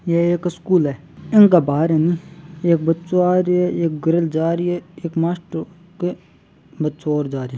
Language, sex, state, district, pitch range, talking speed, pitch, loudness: Marwari, male, Rajasthan, Churu, 160-175 Hz, 190 wpm, 170 Hz, -19 LUFS